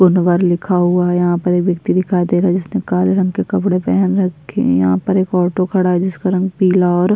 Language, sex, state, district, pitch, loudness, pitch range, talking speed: Hindi, female, Chhattisgarh, Sukma, 180 Hz, -15 LUFS, 175-185 Hz, 270 wpm